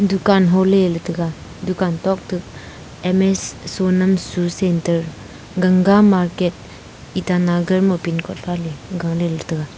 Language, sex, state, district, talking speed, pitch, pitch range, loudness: Wancho, female, Arunachal Pradesh, Longding, 125 wpm, 180 Hz, 170-185 Hz, -18 LUFS